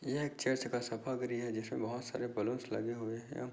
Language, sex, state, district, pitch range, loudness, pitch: Hindi, male, Chhattisgarh, Korba, 115-130 Hz, -38 LUFS, 120 Hz